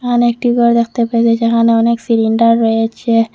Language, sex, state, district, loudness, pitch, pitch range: Bengali, female, Assam, Hailakandi, -13 LUFS, 230 Hz, 230-235 Hz